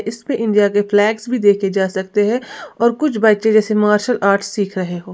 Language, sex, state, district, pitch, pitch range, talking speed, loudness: Hindi, female, Uttar Pradesh, Lalitpur, 210 Hz, 200-230 Hz, 220 wpm, -16 LUFS